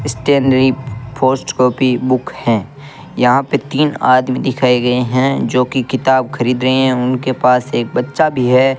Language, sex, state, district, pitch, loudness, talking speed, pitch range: Hindi, male, Rajasthan, Bikaner, 130 Hz, -14 LUFS, 165 wpm, 125-135 Hz